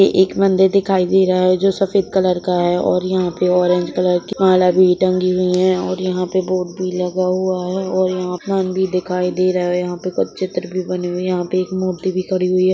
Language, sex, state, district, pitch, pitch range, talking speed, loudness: Hindi, female, Bihar, Gopalganj, 185 Hz, 180-185 Hz, 260 wpm, -17 LUFS